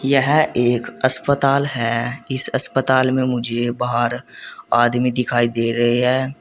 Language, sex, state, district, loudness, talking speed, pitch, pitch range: Hindi, male, Uttar Pradesh, Saharanpur, -18 LUFS, 130 wpm, 125 Hz, 120-130 Hz